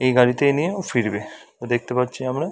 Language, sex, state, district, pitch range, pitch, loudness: Bengali, male, West Bengal, Dakshin Dinajpur, 120-140 Hz, 125 Hz, -21 LUFS